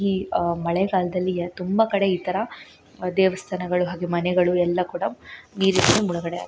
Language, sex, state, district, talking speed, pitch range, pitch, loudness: Kannada, female, Karnataka, Shimoga, 130 wpm, 175-190 Hz, 180 Hz, -23 LUFS